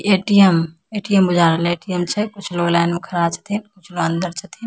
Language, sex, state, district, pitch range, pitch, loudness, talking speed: Maithili, female, Bihar, Samastipur, 170-200 Hz, 180 Hz, -18 LUFS, 205 wpm